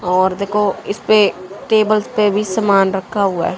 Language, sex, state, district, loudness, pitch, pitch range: Hindi, female, Haryana, Charkhi Dadri, -16 LUFS, 200 Hz, 190-210 Hz